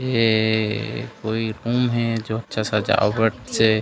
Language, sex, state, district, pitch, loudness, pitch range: Chhattisgarhi, male, Chhattisgarh, Raigarh, 110 Hz, -21 LUFS, 110-115 Hz